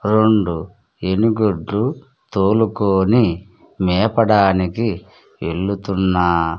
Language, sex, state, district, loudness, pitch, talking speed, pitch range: Telugu, male, Andhra Pradesh, Sri Satya Sai, -18 LUFS, 100 Hz, 45 wpm, 90-110 Hz